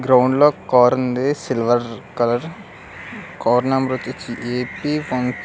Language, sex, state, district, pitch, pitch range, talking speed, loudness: Telugu, male, Andhra Pradesh, Krishna, 125 Hz, 120-130 Hz, 130 wpm, -19 LUFS